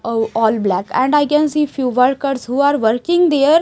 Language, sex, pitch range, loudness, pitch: English, female, 225-295 Hz, -15 LUFS, 270 Hz